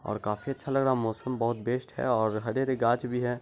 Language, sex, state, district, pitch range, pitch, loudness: Hindi, male, Bihar, Araria, 110-130 Hz, 120 Hz, -29 LUFS